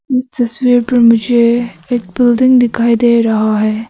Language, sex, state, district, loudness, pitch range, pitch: Hindi, male, Arunachal Pradesh, Papum Pare, -12 LUFS, 230-245 Hz, 240 Hz